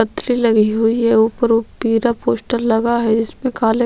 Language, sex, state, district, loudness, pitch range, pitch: Hindi, female, Chhattisgarh, Sukma, -16 LUFS, 225-235 Hz, 230 Hz